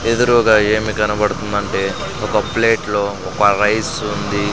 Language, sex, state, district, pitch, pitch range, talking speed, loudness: Telugu, male, Andhra Pradesh, Sri Satya Sai, 105 Hz, 100-110 Hz, 105 wpm, -16 LUFS